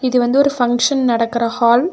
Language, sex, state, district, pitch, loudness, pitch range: Tamil, female, Tamil Nadu, Nilgiris, 245 Hz, -15 LUFS, 235-265 Hz